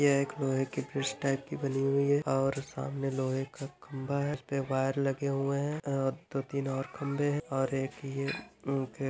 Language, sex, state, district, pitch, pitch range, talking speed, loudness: Hindi, male, Chhattisgarh, Bilaspur, 135 Hz, 135-140 Hz, 190 wpm, -33 LUFS